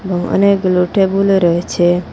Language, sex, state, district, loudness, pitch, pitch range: Bengali, female, Assam, Hailakandi, -14 LUFS, 185 Hz, 175-195 Hz